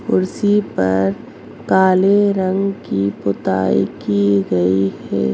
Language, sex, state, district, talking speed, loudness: Hindi, female, Bihar, Darbhanga, 100 wpm, -17 LUFS